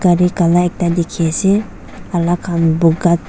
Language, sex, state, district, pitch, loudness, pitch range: Nagamese, female, Nagaland, Dimapur, 175 Hz, -15 LUFS, 170-180 Hz